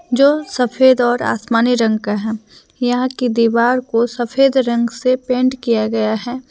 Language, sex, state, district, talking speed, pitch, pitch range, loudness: Hindi, female, Jharkhand, Deoghar, 165 wpm, 245 Hz, 230-255 Hz, -16 LUFS